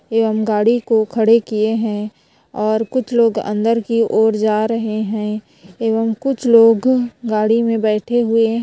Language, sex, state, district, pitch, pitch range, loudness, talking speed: Hindi, female, Chhattisgarh, Korba, 225 Hz, 215-230 Hz, -16 LUFS, 160 wpm